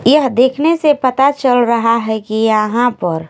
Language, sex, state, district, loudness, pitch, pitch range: Hindi, female, Punjab, Kapurthala, -13 LUFS, 245 Hz, 220-270 Hz